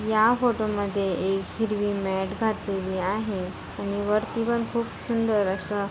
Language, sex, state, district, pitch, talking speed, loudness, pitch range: Marathi, female, Maharashtra, Nagpur, 205 Hz, 140 wpm, -26 LUFS, 195-220 Hz